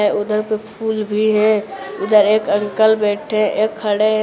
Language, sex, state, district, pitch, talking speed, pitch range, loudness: Hindi, male, Gujarat, Valsad, 215 Hz, 155 wpm, 210-215 Hz, -17 LUFS